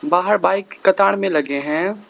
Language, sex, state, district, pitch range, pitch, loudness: Hindi, male, Arunachal Pradesh, Lower Dibang Valley, 175-200 Hz, 195 Hz, -18 LUFS